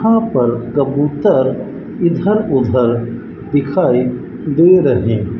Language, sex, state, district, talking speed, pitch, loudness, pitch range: Hindi, male, Rajasthan, Bikaner, 90 wpm, 140 Hz, -14 LUFS, 120-180 Hz